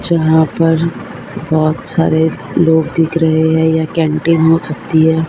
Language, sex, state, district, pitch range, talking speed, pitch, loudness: Hindi, female, Maharashtra, Mumbai Suburban, 160-165 Hz, 145 wpm, 160 Hz, -13 LUFS